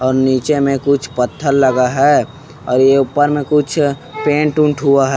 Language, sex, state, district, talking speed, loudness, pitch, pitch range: Chhattisgarhi, male, Chhattisgarh, Kabirdham, 185 wpm, -14 LUFS, 140 Hz, 130-150 Hz